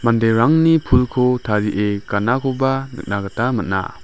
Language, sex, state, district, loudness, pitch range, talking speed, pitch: Garo, male, Meghalaya, West Garo Hills, -18 LUFS, 105-130 Hz, 105 wpm, 120 Hz